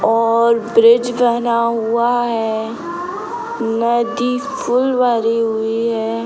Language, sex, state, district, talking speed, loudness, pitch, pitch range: Hindi, male, Bihar, Sitamarhi, 95 wpm, -16 LUFS, 235 Hz, 230-245 Hz